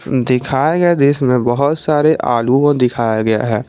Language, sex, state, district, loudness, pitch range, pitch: Hindi, male, Jharkhand, Garhwa, -14 LUFS, 120-145 Hz, 130 Hz